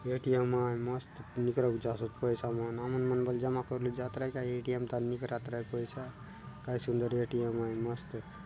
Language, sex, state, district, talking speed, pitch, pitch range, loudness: Halbi, male, Chhattisgarh, Bastar, 185 wpm, 125 Hz, 120-125 Hz, -35 LUFS